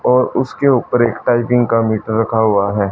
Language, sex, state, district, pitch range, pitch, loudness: Hindi, male, Haryana, Charkhi Dadri, 110-125 Hz, 115 Hz, -15 LUFS